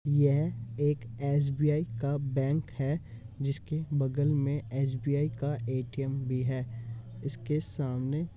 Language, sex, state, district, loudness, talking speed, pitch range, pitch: Hindi, male, Uttar Pradesh, Hamirpur, -31 LUFS, 120 wpm, 130-145 Hz, 140 Hz